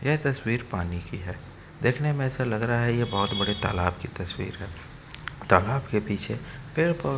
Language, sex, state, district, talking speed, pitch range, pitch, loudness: Hindi, male, Uttar Pradesh, Etah, 200 wpm, 100-135 Hz, 120 Hz, -27 LUFS